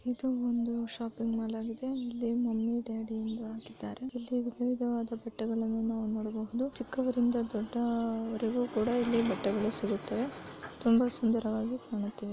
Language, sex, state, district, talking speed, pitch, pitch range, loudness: Kannada, female, Karnataka, Mysore, 125 wpm, 230 Hz, 225-245 Hz, -33 LUFS